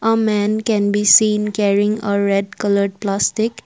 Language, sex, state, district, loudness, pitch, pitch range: English, female, Assam, Kamrup Metropolitan, -16 LUFS, 210 Hz, 200-215 Hz